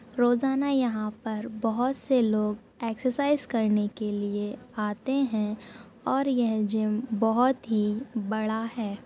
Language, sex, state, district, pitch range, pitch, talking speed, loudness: Hindi, female, Maharashtra, Nagpur, 215-245 Hz, 225 Hz, 125 wpm, -27 LUFS